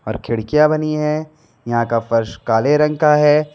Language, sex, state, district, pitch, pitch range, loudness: Hindi, male, Uttar Pradesh, Lalitpur, 150 Hz, 115-150 Hz, -16 LUFS